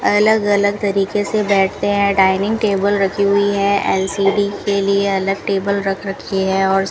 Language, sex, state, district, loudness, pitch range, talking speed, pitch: Hindi, female, Rajasthan, Bikaner, -16 LUFS, 195-205 Hz, 180 wpm, 200 Hz